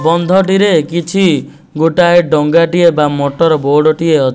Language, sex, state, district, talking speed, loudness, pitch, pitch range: Odia, male, Odisha, Nuapada, 140 wpm, -11 LUFS, 165 Hz, 150-175 Hz